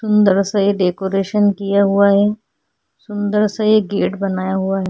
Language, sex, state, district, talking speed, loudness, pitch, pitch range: Hindi, female, Chhattisgarh, Korba, 170 wpm, -16 LUFS, 200 Hz, 195-210 Hz